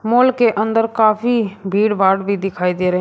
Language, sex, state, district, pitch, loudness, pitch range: Hindi, male, Uttar Pradesh, Shamli, 215 Hz, -16 LUFS, 195-225 Hz